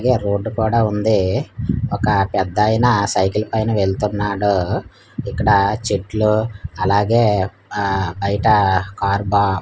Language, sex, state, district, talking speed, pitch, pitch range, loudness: Telugu, male, Andhra Pradesh, Manyam, 95 wpm, 105 Hz, 100-110 Hz, -18 LUFS